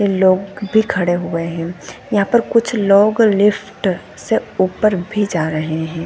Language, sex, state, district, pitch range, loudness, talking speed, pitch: Hindi, female, Chhattisgarh, Bilaspur, 170-210 Hz, -16 LUFS, 160 wpm, 195 Hz